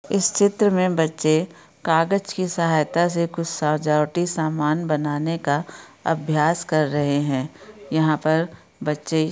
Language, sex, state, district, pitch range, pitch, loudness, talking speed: Hindi, female, Jharkhand, Sahebganj, 150-170 Hz, 160 Hz, -22 LUFS, 130 wpm